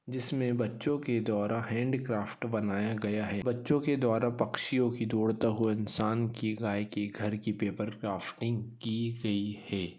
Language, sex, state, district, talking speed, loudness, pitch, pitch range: Hindi, male, Maharashtra, Solapur, 155 wpm, -32 LUFS, 110 Hz, 105-120 Hz